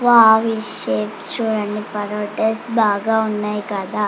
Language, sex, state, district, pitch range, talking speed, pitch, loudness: Telugu, female, Andhra Pradesh, Chittoor, 205-225 Hz, 105 wpm, 210 Hz, -19 LUFS